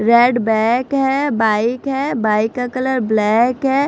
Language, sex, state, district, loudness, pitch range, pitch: Hindi, female, Chandigarh, Chandigarh, -16 LUFS, 220-270 Hz, 245 Hz